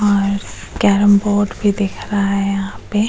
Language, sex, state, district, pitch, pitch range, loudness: Hindi, female, Goa, North and South Goa, 200 Hz, 200-205 Hz, -16 LUFS